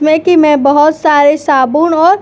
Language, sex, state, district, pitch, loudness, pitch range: Hindi, female, Uttar Pradesh, Etah, 305 Hz, -9 LUFS, 290-320 Hz